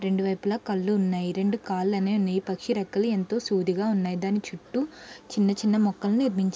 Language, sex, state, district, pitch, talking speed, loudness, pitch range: Telugu, female, Andhra Pradesh, Krishna, 200 Hz, 175 wpm, -26 LUFS, 190-210 Hz